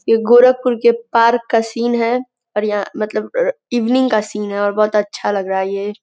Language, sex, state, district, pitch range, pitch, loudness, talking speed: Hindi, female, Uttar Pradesh, Gorakhpur, 210-240 Hz, 230 Hz, -16 LUFS, 220 wpm